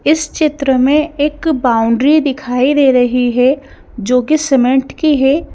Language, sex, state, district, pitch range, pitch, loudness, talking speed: Hindi, female, Madhya Pradesh, Bhopal, 250-300 Hz, 275 Hz, -13 LUFS, 150 wpm